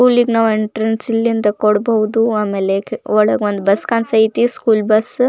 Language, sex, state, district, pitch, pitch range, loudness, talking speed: Kannada, female, Karnataka, Belgaum, 220 Hz, 210-230 Hz, -15 LUFS, 160 wpm